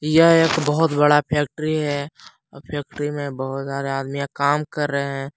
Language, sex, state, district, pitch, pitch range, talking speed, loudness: Hindi, male, Jharkhand, Palamu, 145 Hz, 140-150 Hz, 170 wpm, -21 LUFS